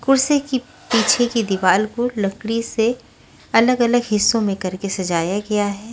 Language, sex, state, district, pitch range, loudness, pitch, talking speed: Hindi, female, Maharashtra, Washim, 200-240 Hz, -19 LUFS, 225 Hz, 160 wpm